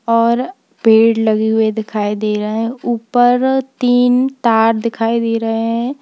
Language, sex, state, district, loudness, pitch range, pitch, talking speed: Hindi, female, Uttar Pradesh, Lalitpur, -15 LUFS, 225-245 Hz, 230 Hz, 150 wpm